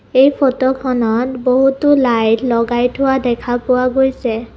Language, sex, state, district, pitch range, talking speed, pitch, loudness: Assamese, female, Assam, Kamrup Metropolitan, 240-265 Hz, 120 wpm, 255 Hz, -14 LUFS